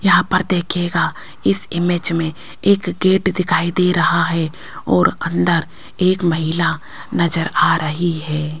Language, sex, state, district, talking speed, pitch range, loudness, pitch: Hindi, female, Rajasthan, Jaipur, 140 wpm, 160-180 Hz, -17 LUFS, 170 Hz